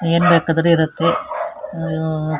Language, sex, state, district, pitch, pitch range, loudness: Kannada, female, Karnataka, Shimoga, 165 Hz, 160-175 Hz, -17 LUFS